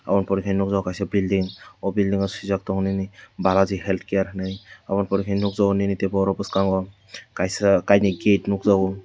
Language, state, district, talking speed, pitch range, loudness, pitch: Kokborok, Tripura, West Tripura, 170 wpm, 95-100 Hz, -22 LUFS, 100 Hz